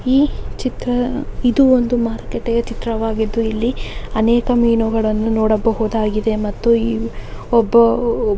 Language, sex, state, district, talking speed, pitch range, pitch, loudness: Kannada, female, Karnataka, Raichur, 105 wpm, 220-240 Hz, 230 Hz, -17 LUFS